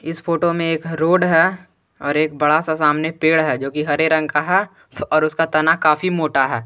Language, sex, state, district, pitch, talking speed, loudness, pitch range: Hindi, male, Jharkhand, Garhwa, 160 Hz, 225 wpm, -17 LUFS, 150-165 Hz